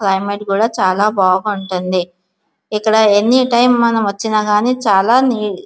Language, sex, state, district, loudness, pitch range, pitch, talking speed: Telugu, female, Andhra Pradesh, Visakhapatnam, -14 LUFS, 195-225 Hz, 210 Hz, 150 wpm